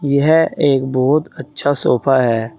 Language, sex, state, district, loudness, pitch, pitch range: Hindi, male, Uttar Pradesh, Saharanpur, -15 LUFS, 140 Hz, 130-145 Hz